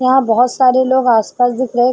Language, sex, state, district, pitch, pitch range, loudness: Hindi, female, Uttar Pradesh, Jalaun, 255 Hz, 245-260 Hz, -13 LUFS